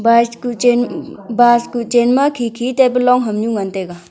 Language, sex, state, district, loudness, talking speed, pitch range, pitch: Wancho, female, Arunachal Pradesh, Longding, -15 LUFS, 205 wpm, 230-245 Hz, 240 Hz